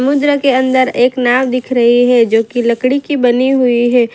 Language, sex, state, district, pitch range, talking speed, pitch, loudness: Hindi, female, Gujarat, Valsad, 240-260 Hz, 215 wpm, 250 Hz, -12 LUFS